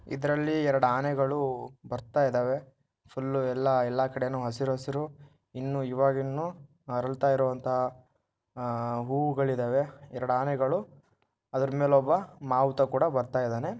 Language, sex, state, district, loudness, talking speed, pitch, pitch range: Kannada, male, Karnataka, Shimoga, -29 LUFS, 105 wpm, 135 Hz, 125-140 Hz